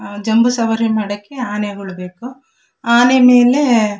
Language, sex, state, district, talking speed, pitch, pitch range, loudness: Kannada, female, Karnataka, Shimoga, 120 wpm, 225 Hz, 205-250 Hz, -14 LUFS